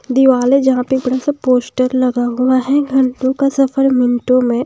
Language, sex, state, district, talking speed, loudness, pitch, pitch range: Hindi, female, Himachal Pradesh, Shimla, 205 wpm, -14 LUFS, 255 Hz, 250-270 Hz